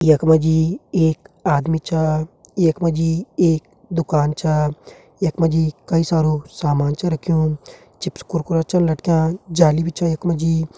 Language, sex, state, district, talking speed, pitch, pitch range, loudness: Hindi, male, Uttarakhand, Uttarkashi, 145 wpm, 160 Hz, 155-170 Hz, -19 LUFS